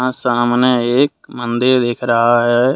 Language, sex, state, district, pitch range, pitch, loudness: Hindi, male, Jharkhand, Deoghar, 120-125 Hz, 120 Hz, -14 LUFS